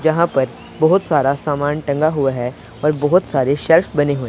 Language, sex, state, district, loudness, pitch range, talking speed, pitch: Hindi, male, Punjab, Pathankot, -17 LUFS, 135-160 Hz, 195 wpm, 145 Hz